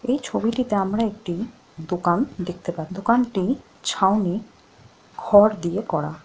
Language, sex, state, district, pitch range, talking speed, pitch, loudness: Bengali, female, West Bengal, Jhargram, 175-225 Hz, 105 wpm, 200 Hz, -22 LUFS